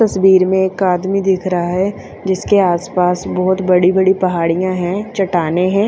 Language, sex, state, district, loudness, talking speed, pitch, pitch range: Hindi, female, Haryana, Charkhi Dadri, -15 LUFS, 175 wpm, 185 Hz, 180-190 Hz